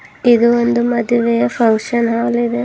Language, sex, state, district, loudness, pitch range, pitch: Kannada, female, Karnataka, Bidar, -14 LUFS, 220-240 Hz, 235 Hz